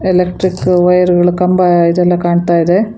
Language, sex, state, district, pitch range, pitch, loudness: Kannada, female, Karnataka, Bangalore, 175-180 Hz, 180 Hz, -11 LUFS